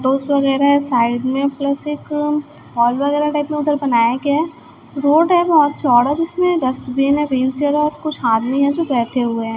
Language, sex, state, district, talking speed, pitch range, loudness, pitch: Hindi, female, Chhattisgarh, Raipur, 190 wpm, 255-295 Hz, -16 LUFS, 280 Hz